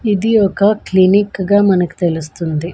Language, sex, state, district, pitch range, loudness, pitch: Telugu, female, Andhra Pradesh, Manyam, 175-205 Hz, -14 LUFS, 190 Hz